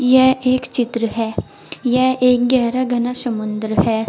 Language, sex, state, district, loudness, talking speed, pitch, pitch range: Hindi, female, Uttar Pradesh, Saharanpur, -17 LUFS, 145 wpm, 245 Hz, 230-255 Hz